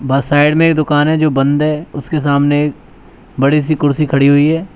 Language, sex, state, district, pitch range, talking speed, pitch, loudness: Hindi, male, Uttar Pradesh, Shamli, 145-155 Hz, 200 wpm, 150 Hz, -13 LUFS